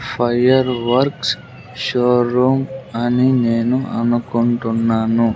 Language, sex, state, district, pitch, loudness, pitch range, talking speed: Telugu, male, Andhra Pradesh, Sri Satya Sai, 125 Hz, -17 LUFS, 120-130 Hz, 65 wpm